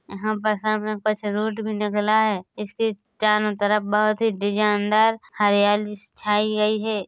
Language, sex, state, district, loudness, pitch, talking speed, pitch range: Hindi, female, Chhattisgarh, Korba, -22 LUFS, 210 Hz, 180 wpm, 210-215 Hz